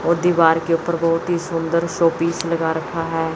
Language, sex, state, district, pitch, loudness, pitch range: Hindi, male, Chandigarh, Chandigarh, 165 Hz, -19 LUFS, 165-170 Hz